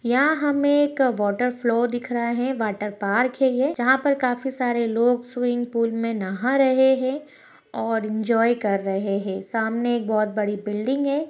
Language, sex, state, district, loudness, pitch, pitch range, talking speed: Hindi, female, Maharashtra, Dhule, -22 LUFS, 240 Hz, 220-260 Hz, 180 wpm